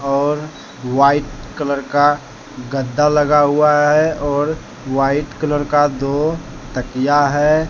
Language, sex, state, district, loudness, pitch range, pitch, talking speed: Hindi, male, Jharkhand, Deoghar, -16 LUFS, 140-150 Hz, 145 Hz, 115 wpm